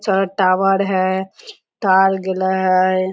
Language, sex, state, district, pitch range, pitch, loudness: Hindi, female, Jharkhand, Sahebganj, 185-195 Hz, 190 Hz, -17 LUFS